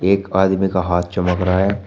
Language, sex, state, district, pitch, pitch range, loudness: Hindi, male, Uttar Pradesh, Shamli, 95 Hz, 90-95 Hz, -18 LUFS